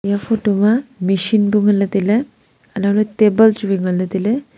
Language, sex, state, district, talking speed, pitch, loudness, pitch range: Wancho, female, Arunachal Pradesh, Longding, 210 wpm, 205 Hz, -16 LUFS, 195-220 Hz